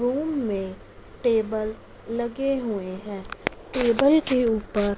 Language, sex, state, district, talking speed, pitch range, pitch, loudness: Hindi, female, Punjab, Fazilka, 110 wpm, 205-255 Hz, 230 Hz, -25 LUFS